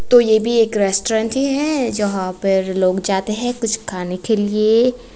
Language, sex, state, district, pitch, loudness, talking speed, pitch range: Hindi, female, Tripura, West Tripura, 220 Hz, -17 LUFS, 185 wpm, 195-235 Hz